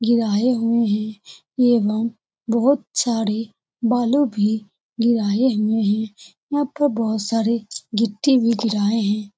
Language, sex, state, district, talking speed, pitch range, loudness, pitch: Hindi, female, Bihar, Saran, 120 wpm, 215-240 Hz, -20 LUFS, 225 Hz